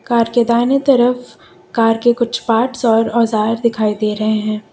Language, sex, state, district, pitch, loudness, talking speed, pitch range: Hindi, female, Uttar Pradesh, Lucknow, 230 Hz, -15 LUFS, 175 wpm, 215-240 Hz